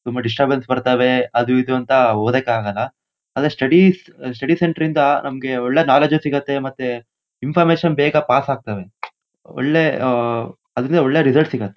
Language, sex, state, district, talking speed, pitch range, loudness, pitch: Kannada, male, Karnataka, Shimoga, 150 wpm, 125-150 Hz, -17 LUFS, 130 Hz